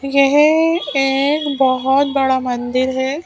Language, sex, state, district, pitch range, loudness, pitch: Hindi, female, Madhya Pradesh, Bhopal, 260-290 Hz, -15 LUFS, 275 Hz